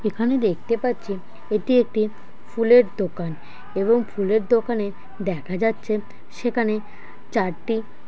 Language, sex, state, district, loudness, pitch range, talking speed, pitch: Bengali, male, West Bengal, Dakshin Dinajpur, -23 LUFS, 200-230 Hz, 105 wpm, 215 Hz